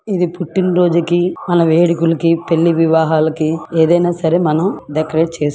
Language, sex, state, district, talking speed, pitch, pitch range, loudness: Telugu, female, Andhra Pradesh, Guntur, 130 wpm, 165 Hz, 160-175 Hz, -14 LUFS